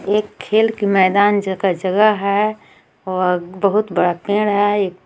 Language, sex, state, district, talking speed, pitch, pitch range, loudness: Hindi, female, Jharkhand, Garhwa, 165 wpm, 200 Hz, 185-210 Hz, -17 LUFS